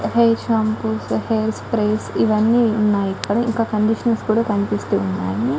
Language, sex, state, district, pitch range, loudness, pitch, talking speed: Telugu, female, Telangana, Karimnagar, 210-230 Hz, -19 LUFS, 220 Hz, 140 wpm